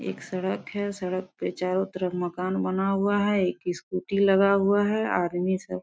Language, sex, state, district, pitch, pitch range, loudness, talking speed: Hindi, female, Jharkhand, Sahebganj, 185 Hz, 180-200 Hz, -26 LUFS, 195 wpm